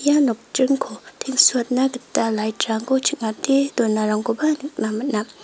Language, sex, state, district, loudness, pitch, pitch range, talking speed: Garo, female, Meghalaya, West Garo Hills, -20 LUFS, 250 Hz, 220-275 Hz, 110 wpm